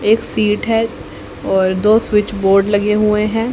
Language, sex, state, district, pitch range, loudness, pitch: Hindi, female, Haryana, Rohtak, 205-220 Hz, -15 LUFS, 210 Hz